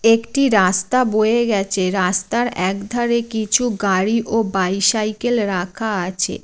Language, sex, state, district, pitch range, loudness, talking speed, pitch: Bengali, female, West Bengal, Jalpaiguri, 190-230 Hz, -18 LUFS, 110 wpm, 215 Hz